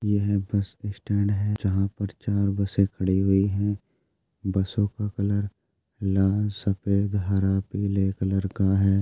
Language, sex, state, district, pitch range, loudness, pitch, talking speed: Hindi, male, Uttar Pradesh, Jyotiba Phule Nagar, 95-100 Hz, -25 LUFS, 100 Hz, 140 wpm